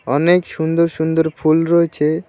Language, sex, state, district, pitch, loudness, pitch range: Bengali, male, West Bengal, Alipurduar, 160 Hz, -16 LUFS, 155-170 Hz